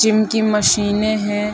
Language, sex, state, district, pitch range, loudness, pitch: Hindi, female, Bihar, Madhepura, 210-215 Hz, -16 LUFS, 215 Hz